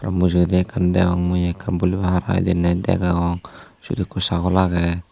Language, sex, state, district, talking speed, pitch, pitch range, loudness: Chakma, male, Tripura, Unakoti, 150 wpm, 90 Hz, 85-90 Hz, -20 LUFS